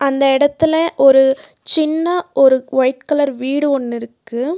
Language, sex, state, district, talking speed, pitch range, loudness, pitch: Tamil, female, Tamil Nadu, Nilgiris, 120 wpm, 265-300 Hz, -15 LUFS, 275 Hz